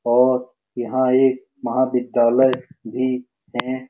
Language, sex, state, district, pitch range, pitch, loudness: Hindi, male, Bihar, Saran, 125-130 Hz, 130 Hz, -20 LUFS